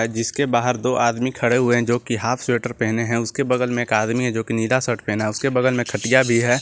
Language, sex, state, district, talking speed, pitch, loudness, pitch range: Hindi, male, Jharkhand, Garhwa, 270 wpm, 120 Hz, -20 LUFS, 115-125 Hz